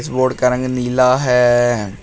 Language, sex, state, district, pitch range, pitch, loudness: Hindi, male, Uttar Pradesh, Shamli, 120-130 Hz, 125 Hz, -15 LUFS